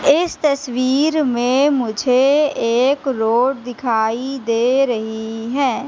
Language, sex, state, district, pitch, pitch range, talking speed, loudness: Hindi, female, Madhya Pradesh, Katni, 255 Hz, 235-275 Hz, 100 wpm, -17 LUFS